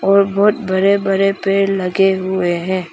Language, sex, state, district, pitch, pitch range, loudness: Hindi, female, Arunachal Pradesh, Papum Pare, 195 Hz, 190-195 Hz, -15 LUFS